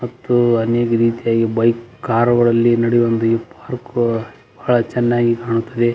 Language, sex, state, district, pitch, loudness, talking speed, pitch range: Kannada, male, Karnataka, Belgaum, 120 Hz, -17 LUFS, 120 wpm, 115-120 Hz